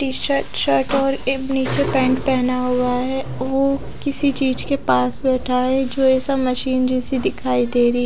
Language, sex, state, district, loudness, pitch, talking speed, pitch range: Hindi, female, Odisha, Khordha, -18 LUFS, 260 Hz, 185 wpm, 250-270 Hz